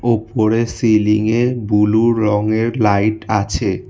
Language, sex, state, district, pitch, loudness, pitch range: Bengali, male, West Bengal, Alipurduar, 110 Hz, -16 LUFS, 105-115 Hz